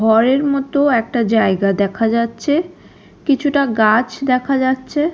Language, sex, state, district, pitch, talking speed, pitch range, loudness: Bengali, female, Odisha, Khordha, 255 Hz, 115 wpm, 225-280 Hz, -16 LUFS